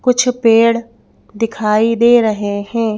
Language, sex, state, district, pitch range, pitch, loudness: Hindi, female, Madhya Pradesh, Bhopal, 215-235 Hz, 230 Hz, -14 LUFS